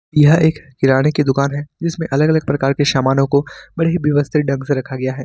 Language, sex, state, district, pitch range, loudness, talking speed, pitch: Hindi, male, Jharkhand, Ranchi, 135-155 Hz, -16 LUFS, 240 wpm, 145 Hz